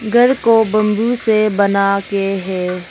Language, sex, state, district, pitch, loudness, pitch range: Hindi, female, Arunachal Pradesh, Longding, 210 Hz, -15 LUFS, 195-225 Hz